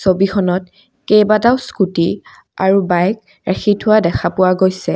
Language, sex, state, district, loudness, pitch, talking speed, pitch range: Assamese, female, Assam, Kamrup Metropolitan, -15 LUFS, 195 Hz, 120 wpm, 185-210 Hz